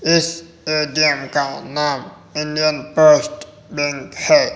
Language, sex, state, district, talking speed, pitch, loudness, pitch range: Hindi, male, Rajasthan, Jaipur, 90 wpm, 155 Hz, -17 LUFS, 150-165 Hz